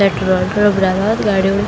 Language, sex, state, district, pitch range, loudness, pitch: Garhwali, female, Uttarakhand, Tehri Garhwal, 190-205 Hz, -15 LUFS, 200 Hz